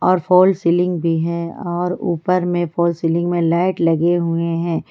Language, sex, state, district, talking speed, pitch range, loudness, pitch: Hindi, female, Jharkhand, Ranchi, 185 wpm, 170-180 Hz, -18 LUFS, 170 Hz